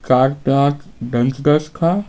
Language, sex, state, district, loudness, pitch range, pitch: Hindi, male, Bihar, Patna, -17 LUFS, 130-165 Hz, 140 Hz